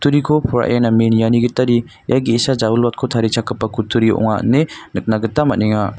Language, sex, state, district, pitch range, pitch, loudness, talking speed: Garo, male, Meghalaya, North Garo Hills, 110-130 Hz, 115 Hz, -16 LUFS, 140 wpm